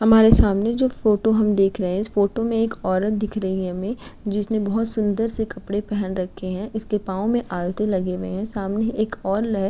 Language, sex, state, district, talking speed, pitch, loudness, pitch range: Hindi, female, Uttar Pradesh, Gorakhpur, 230 wpm, 210 Hz, -22 LUFS, 195-220 Hz